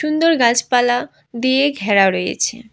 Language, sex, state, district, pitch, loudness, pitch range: Bengali, female, West Bengal, Alipurduar, 245 Hz, -16 LUFS, 235-275 Hz